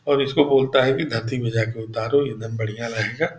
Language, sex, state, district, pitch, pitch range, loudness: Hindi, male, Bihar, Purnia, 120 Hz, 115-140 Hz, -22 LUFS